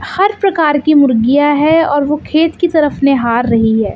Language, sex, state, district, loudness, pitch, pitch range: Hindi, female, Chandigarh, Chandigarh, -12 LUFS, 295 Hz, 265-325 Hz